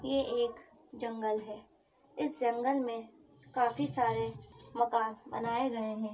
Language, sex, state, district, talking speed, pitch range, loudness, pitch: Hindi, female, Uttar Pradesh, Ghazipur, 125 wpm, 215-245 Hz, -34 LUFS, 235 Hz